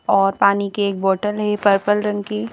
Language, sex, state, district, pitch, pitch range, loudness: Hindi, female, Madhya Pradesh, Bhopal, 205 Hz, 195-210 Hz, -18 LUFS